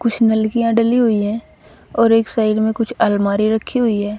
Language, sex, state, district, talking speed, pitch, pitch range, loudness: Hindi, female, Haryana, Rohtak, 200 wpm, 225 Hz, 215-230 Hz, -16 LUFS